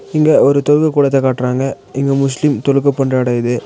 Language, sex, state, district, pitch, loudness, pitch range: Tamil, female, Tamil Nadu, Nilgiris, 135 Hz, -14 LUFS, 130-140 Hz